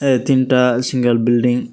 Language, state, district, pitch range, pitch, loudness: Kokborok, Tripura, West Tripura, 120-130 Hz, 125 Hz, -15 LUFS